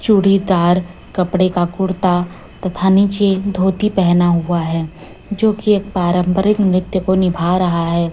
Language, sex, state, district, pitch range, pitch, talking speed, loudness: Hindi, female, Chhattisgarh, Raipur, 175-195 Hz, 185 Hz, 140 wpm, -16 LUFS